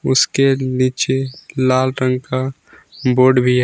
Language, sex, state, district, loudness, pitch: Hindi, male, Jharkhand, Garhwa, -17 LUFS, 130 Hz